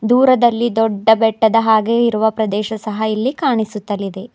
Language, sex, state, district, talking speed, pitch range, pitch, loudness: Kannada, female, Karnataka, Bidar, 125 wpm, 215-235 Hz, 220 Hz, -15 LUFS